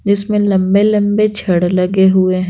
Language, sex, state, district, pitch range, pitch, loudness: Hindi, female, Bihar, Patna, 185-205 Hz, 195 Hz, -13 LUFS